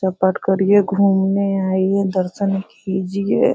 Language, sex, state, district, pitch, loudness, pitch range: Hindi, female, Bihar, Sitamarhi, 190 Hz, -18 LUFS, 190-200 Hz